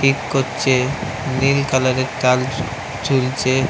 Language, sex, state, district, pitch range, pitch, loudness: Bengali, male, West Bengal, Kolkata, 130-135 Hz, 130 Hz, -18 LUFS